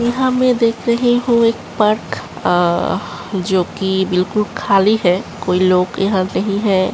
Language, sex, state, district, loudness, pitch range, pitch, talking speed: Hindi, female, Uttar Pradesh, Hamirpur, -16 LUFS, 185-230 Hz, 200 Hz, 145 wpm